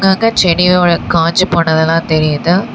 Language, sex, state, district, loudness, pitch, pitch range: Tamil, female, Tamil Nadu, Namakkal, -11 LUFS, 170 Hz, 165-185 Hz